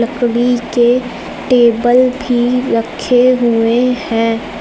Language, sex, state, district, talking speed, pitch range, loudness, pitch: Hindi, female, Uttar Pradesh, Lucknow, 90 wpm, 235-250 Hz, -13 LUFS, 240 Hz